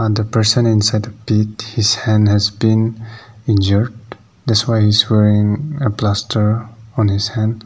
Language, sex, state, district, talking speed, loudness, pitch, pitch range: English, male, Nagaland, Dimapur, 155 wpm, -15 LUFS, 110 Hz, 105-115 Hz